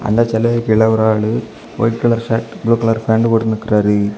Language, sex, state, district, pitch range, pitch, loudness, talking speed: Tamil, male, Tamil Nadu, Kanyakumari, 110-115 Hz, 115 Hz, -15 LUFS, 185 wpm